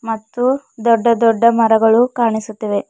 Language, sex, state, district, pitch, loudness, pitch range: Kannada, female, Karnataka, Bidar, 230 Hz, -15 LUFS, 220-235 Hz